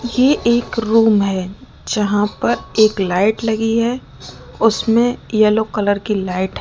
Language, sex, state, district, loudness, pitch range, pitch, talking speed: Hindi, female, Rajasthan, Jaipur, -16 LUFS, 205-230 Hz, 220 Hz, 145 wpm